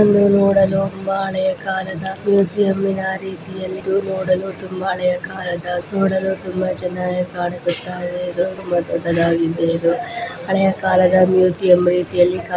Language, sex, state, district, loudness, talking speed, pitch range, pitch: Kannada, female, Karnataka, Dharwad, -18 LUFS, 90 wpm, 180-195 Hz, 185 Hz